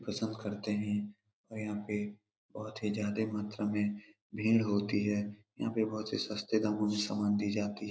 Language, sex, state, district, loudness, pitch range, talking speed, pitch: Hindi, male, Bihar, Saran, -34 LUFS, 105-110 Hz, 190 wpm, 105 Hz